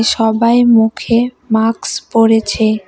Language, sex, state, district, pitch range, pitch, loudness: Bengali, female, West Bengal, Cooch Behar, 220-230 Hz, 225 Hz, -13 LUFS